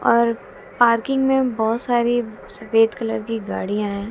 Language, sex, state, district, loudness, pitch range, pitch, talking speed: Hindi, female, Haryana, Jhajjar, -20 LUFS, 205-240 Hz, 225 Hz, 145 wpm